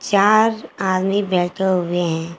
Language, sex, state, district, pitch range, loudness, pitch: Hindi, female, Jharkhand, Garhwa, 175-200 Hz, -18 LUFS, 190 Hz